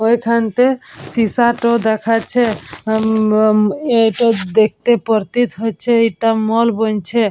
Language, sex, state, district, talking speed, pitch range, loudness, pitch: Bengali, female, West Bengal, Purulia, 90 wpm, 220-235 Hz, -15 LUFS, 225 Hz